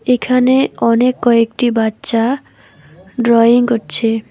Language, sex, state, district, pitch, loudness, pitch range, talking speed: Bengali, female, West Bengal, Alipurduar, 230 Hz, -14 LUFS, 220-245 Hz, 85 wpm